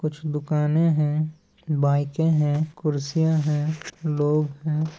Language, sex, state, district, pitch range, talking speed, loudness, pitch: Chhattisgarhi, male, Chhattisgarh, Balrampur, 150-155 Hz, 110 wpm, -24 LUFS, 150 Hz